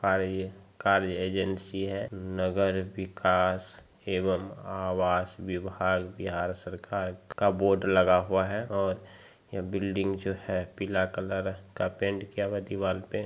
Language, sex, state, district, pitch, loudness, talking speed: Hindi, male, Bihar, Begusarai, 95 Hz, -30 LUFS, 135 wpm